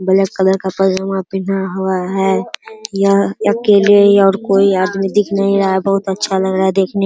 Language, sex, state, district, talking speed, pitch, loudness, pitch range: Hindi, male, Bihar, Araria, 205 wpm, 195 Hz, -14 LUFS, 190-200 Hz